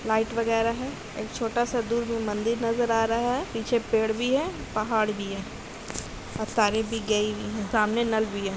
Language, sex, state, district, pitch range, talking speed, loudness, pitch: Hindi, female, Bihar, East Champaran, 215-235 Hz, 160 wpm, -27 LUFS, 225 Hz